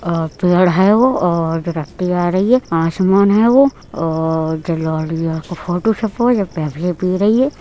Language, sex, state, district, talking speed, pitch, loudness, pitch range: Hindi, female, Uttar Pradesh, Etah, 110 wpm, 180 Hz, -16 LUFS, 165-205 Hz